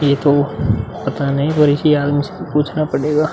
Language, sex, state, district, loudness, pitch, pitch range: Hindi, male, Uttar Pradesh, Muzaffarnagar, -17 LUFS, 145 Hz, 145-150 Hz